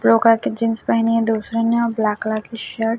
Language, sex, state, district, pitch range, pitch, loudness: Hindi, male, Chhattisgarh, Raipur, 220-230 Hz, 225 Hz, -19 LUFS